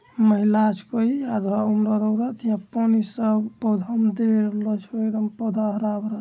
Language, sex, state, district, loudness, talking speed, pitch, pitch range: Angika, male, Bihar, Bhagalpur, -22 LUFS, 125 wpm, 215 Hz, 210-225 Hz